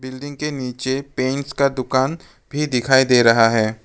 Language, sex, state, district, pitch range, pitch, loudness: Hindi, male, Arunachal Pradesh, Papum Pare, 125-140 Hz, 130 Hz, -18 LUFS